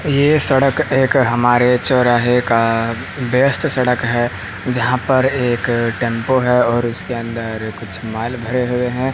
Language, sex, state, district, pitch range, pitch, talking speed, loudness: Hindi, male, Haryana, Rohtak, 115-130 Hz, 125 Hz, 145 wpm, -16 LUFS